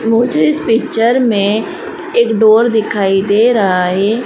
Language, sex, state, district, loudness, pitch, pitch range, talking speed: Hindi, female, Madhya Pradesh, Dhar, -12 LUFS, 225 Hz, 200-240 Hz, 140 wpm